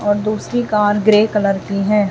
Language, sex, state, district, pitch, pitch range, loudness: Hindi, female, Chhattisgarh, Raipur, 210 Hz, 205-215 Hz, -16 LUFS